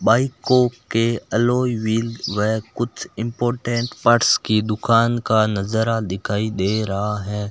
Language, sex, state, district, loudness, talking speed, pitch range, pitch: Hindi, male, Rajasthan, Bikaner, -20 LUFS, 130 wpm, 105-120 Hz, 115 Hz